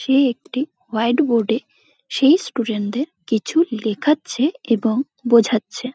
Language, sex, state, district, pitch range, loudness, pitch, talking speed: Bengali, female, West Bengal, Dakshin Dinajpur, 230-285 Hz, -19 LUFS, 245 Hz, 130 wpm